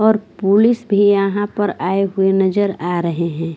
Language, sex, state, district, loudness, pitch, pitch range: Hindi, female, Bihar, West Champaran, -16 LUFS, 195 Hz, 180-205 Hz